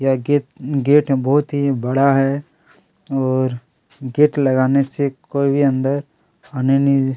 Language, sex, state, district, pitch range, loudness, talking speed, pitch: Hindi, male, Chhattisgarh, Kabirdham, 135-145 Hz, -18 LUFS, 150 wpm, 140 Hz